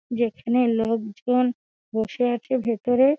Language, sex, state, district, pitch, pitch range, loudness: Bengali, female, West Bengal, Dakshin Dinajpur, 240 Hz, 230-250 Hz, -23 LUFS